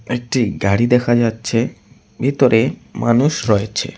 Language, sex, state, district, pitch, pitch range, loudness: Bengali, male, West Bengal, Cooch Behar, 120 Hz, 115-125 Hz, -17 LUFS